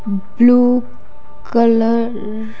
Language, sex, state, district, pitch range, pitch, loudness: Hindi, female, Odisha, Khordha, 220-240 Hz, 230 Hz, -15 LUFS